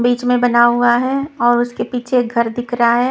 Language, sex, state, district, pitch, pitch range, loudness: Hindi, female, Punjab, Kapurthala, 245 Hz, 240-245 Hz, -15 LUFS